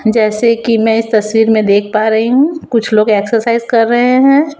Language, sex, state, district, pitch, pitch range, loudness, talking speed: Hindi, female, Chhattisgarh, Raipur, 225 Hz, 220-240 Hz, -11 LUFS, 210 wpm